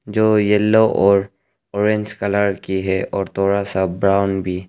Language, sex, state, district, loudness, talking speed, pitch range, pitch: Hindi, male, Arunachal Pradesh, Lower Dibang Valley, -18 LUFS, 155 wpm, 95-105 Hz, 100 Hz